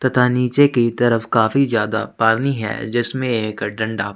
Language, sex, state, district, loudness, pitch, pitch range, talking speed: Hindi, male, Chhattisgarh, Sukma, -18 LUFS, 115 Hz, 110-125 Hz, 175 wpm